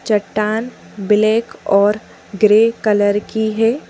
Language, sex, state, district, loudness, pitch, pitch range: Hindi, female, Madhya Pradesh, Bhopal, -16 LUFS, 215 Hz, 210-220 Hz